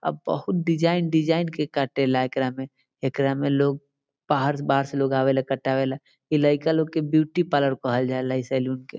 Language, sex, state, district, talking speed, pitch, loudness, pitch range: Bhojpuri, male, Bihar, Saran, 195 wpm, 140 Hz, -24 LUFS, 135-150 Hz